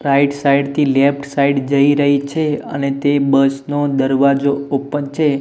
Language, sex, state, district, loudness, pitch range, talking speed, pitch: Gujarati, male, Gujarat, Gandhinagar, -16 LUFS, 140-145 Hz, 165 wpm, 140 Hz